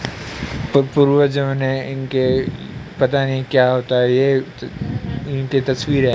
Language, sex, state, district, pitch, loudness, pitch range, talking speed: Hindi, male, Rajasthan, Bikaner, 135 Hz, -18 LUFS, 130-140 Hz, 125 wpm